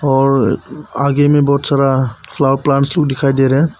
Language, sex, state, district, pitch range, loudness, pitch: Hindi, male, Arunachal Pradesh, Papum Pare, 135-145 Hz, -14 LUFS, 140 Hz